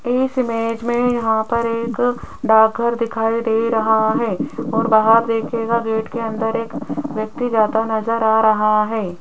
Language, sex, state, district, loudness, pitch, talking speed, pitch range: Hindi, female, Rajasthan, Jaipur, -18 LUFS, 225 Hz, 155 wpm, 220-235 Hz